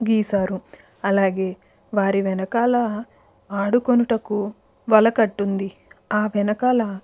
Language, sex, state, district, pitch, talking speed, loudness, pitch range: Telugu, female, Andhra Pradesh, Krishna, 210 Hz, 85 wpm, -21 LUFS, 195-225 Hz